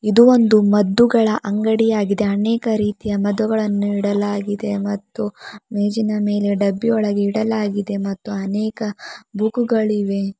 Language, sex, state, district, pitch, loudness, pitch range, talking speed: Kannada, female, Karnataka, Bidar, 210 Hz, -18 LUFS, 205-220 Hz, 90 wpm